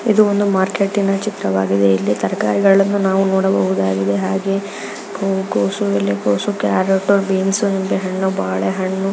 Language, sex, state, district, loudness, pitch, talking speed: Kannada, female, Karnataka, Raichur, -17 LUFS, 190 Hz, 130 wpm